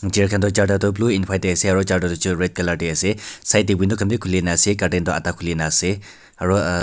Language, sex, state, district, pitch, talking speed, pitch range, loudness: Nagamese, male, Nagaland, Kohima, 95 Hz, 280 wpm, 90-100 Hz, -19 LUFS